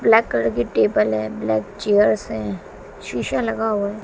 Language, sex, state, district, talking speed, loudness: Hindi, female, Bihar, West Champaran, 180 wpm, -20 LUFS